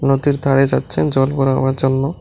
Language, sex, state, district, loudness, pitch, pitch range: Bengali, male, Tripura, West Tripura, -16 LUFS, 135 Hz, 135-140 Hz